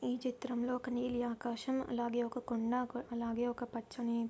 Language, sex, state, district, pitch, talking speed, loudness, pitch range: Telugu, female, Andhra Pradesh, Anantapur, 245 Hz, 155 wpm, -38 LUFS, 235-250 Hz